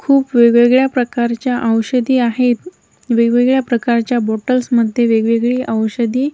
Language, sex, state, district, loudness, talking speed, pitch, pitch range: Marathi, female, Maharashtra, Washim, -14 LUFS, 105 wpm, 240 Hz, 235-255 Hz